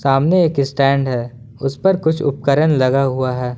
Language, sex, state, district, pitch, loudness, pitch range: Hindi, male, Jharkhand, Ranchi, 135 Hz, -16 LUFS, 130-150 Hz